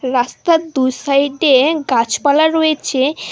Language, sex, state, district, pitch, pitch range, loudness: Bengali, female, West Bengal, Alipurduar, 280 Hz, 260-315 Hz, -14 LUFS